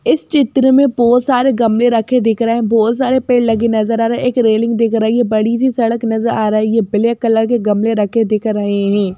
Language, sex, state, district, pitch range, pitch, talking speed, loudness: Hindi, female, Madhya Pradesh, Bhopal, 220-245 Hz, 230 Hz, 260 wpm, -13 LUFS